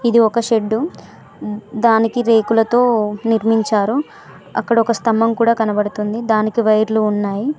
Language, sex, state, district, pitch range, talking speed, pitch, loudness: Telugu, female, Telangana, Mahabubabad, 215-230 Hz, 110 wpm, 225 Hz, -16 LUFS